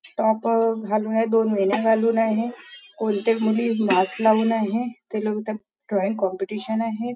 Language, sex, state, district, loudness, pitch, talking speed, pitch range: Marathi, female, Maharashtra, Nagpur, -22 LUFS, 220 Hz, 160 wpm, 215-230 Hz